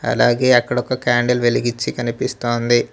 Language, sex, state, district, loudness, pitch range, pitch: Telugu, male, Telangana, Mahabubabad, -18 LUFS, 120-125 Hz, 120 Hz